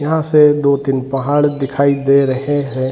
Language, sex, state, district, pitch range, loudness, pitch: Hindi, male, Bihar, Gaya, 135-145 Hz, -14 LUFS, 140 Hz